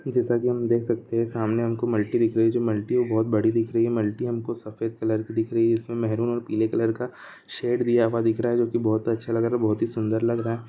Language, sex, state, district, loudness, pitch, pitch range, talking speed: Hindi, male, Andhra Pradesh, Krishna, -24 LUFS, 115 Hz, 110-120 Hz, 285 wpm